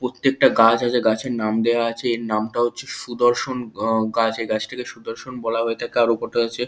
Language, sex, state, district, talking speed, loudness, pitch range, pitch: Bengali, male, West Bengal, Kolkata, 190 wpm, -21 LUFS, 115-120 Hz, 115 Hz